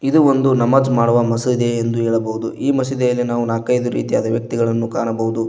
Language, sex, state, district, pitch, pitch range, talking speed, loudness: Kannada, male, Karnataka, Koppal, 120 Hz, 115-125 Hz, 140 wpm, -17 LUFS